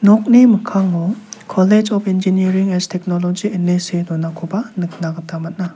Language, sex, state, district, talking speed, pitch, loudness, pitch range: Garo, male, Meghalaya, South Garo Hills, 135 wpm, 185 Hz, -16 LUFS, 175-205 Hz